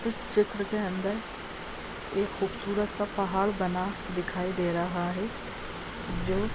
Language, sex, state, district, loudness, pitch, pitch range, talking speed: Hindi, female, Uttar Pradesh, Deoria, -31 LUFS, 195 Hz, 180-205 Hz, 135 wpm